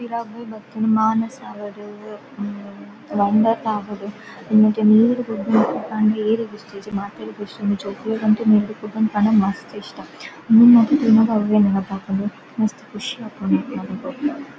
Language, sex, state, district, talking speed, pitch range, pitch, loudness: Tulu, female, Karnataka, Dakshina Kannada, 120 wpm, 205-225 Hz, 215 Hz, -19 LUFS